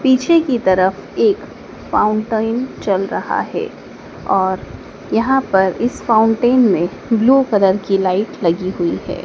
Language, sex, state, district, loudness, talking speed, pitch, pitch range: Hindi, female, Madhya Pradesh, Dhar, -16 LUFS, 135 wpm, 215 Hz, 190-245 Hz